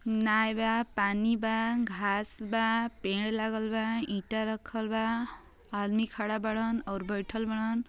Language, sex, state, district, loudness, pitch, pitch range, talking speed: Bhojpuri, female, Uttar Pradesh, Ghazipur, -31 LUFS, 220 Hz, 215-225 Hz, 135 wpm